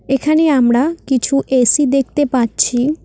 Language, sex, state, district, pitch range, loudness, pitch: Bengali, female, West Bengal, Cooch Behar, 250-290 Hz, -14 LUFS, 270 Hz